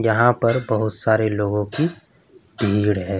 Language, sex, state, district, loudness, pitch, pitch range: Hindi, male, Bihar, Vaishali, -20 LUFS, 110 Hz, 105-115 Hz